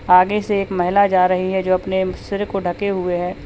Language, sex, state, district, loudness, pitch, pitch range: Hindi, male, Uttar Pradesh, Lalitpur, -18 LUFS, 185 Hz, 180-200 Hz